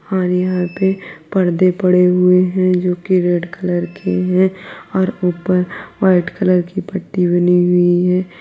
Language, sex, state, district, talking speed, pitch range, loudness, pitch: Hindi, female, Uttar Pradesh, Lalitpur, 155 wpm, 180-185 Hz, -15 LUFS, 180 Hz